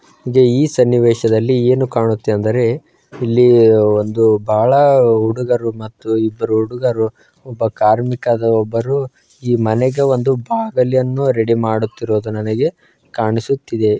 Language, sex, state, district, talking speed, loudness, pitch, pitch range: Kannada, male, Karnataka, Bijapur, 85 wpm, -15 LUFS, 115 Hz, 110-130 Hz